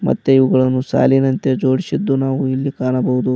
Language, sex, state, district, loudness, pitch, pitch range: Kannada, male, Karnataka, Koppal, -16 LUFS, 130 Hz, 130-135 Hz